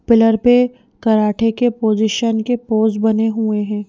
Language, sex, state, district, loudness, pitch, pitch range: Hindi, female, Madhya Pradesh, Bhopal, -16 LUFS, 225 Hz, 220-235 Hz